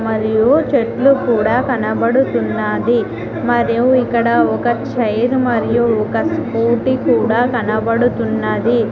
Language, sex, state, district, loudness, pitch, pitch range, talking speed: Telugu, female, Telangana, Mahabubabad, -15 LUFS, 235 Hz, 225-245 Hz, 85 wpm